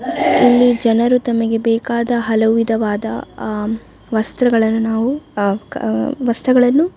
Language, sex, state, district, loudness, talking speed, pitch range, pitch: Kannada, female, Karnataka, Dakshina Kannada, -16 LUFS, 110 wpm, 225-245 Hz, 230 Hz